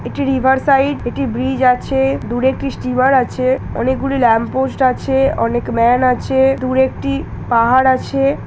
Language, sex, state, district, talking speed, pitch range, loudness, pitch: Bengali, female, West Bengal, Jhargram, 150 wpm, 250-270 Hz, -15 LUFS, 260 Hz